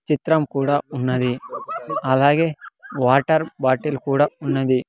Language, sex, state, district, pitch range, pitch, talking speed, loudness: Telugu, male, Andhra Pradesh, Sri Satya Sai, 130-150 Hz, 140 Hz, 100 wpm, -20 LUFS